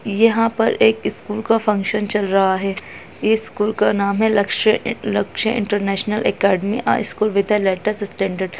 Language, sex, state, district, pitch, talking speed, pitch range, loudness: Hindi, female, Uttarakhand, Tehri Garhwal, 210 Hz, 190 wpm, 200-220 Hz, -18 LUFS